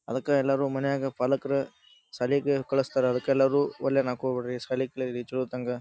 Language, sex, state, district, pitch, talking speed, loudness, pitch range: Kannada, male, Karnataka, Dharwad, 135 Hz, 155 wpm, -27 LUFS, 125-135 Hz